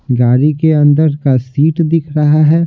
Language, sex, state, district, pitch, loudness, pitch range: Hindi, male, Bihar, Patna, 150 Hz, -11 LUFS, 140-155 Hz